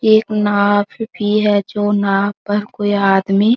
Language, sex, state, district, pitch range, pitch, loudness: Hindi, female, Bihar, Araria, 200-210 Hz, 205 Hz, -16 LUFS